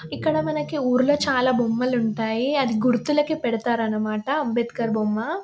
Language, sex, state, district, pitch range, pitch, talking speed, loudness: Telugu, female, Telangana, Nalgonda, 230-290 Hz, 250 Hz, 145 wpm, -22 LUFS